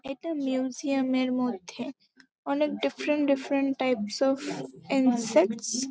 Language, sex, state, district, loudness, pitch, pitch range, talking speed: Bengali, female, West Bengal, Kolkata, -27 LUFS, 265 Hz, 250-275 Hz, 110 wpm